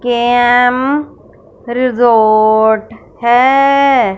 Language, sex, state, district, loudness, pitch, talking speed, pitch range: Hindi, female, Punjab, Fazilka, -11 LUFS, 245 Hz, 45 wpm, 225-255 Hz